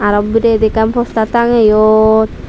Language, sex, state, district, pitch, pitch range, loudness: Chakma, female, Tripura, Dhalai, 220 Hz, 215-230 Hz, -11 LUFS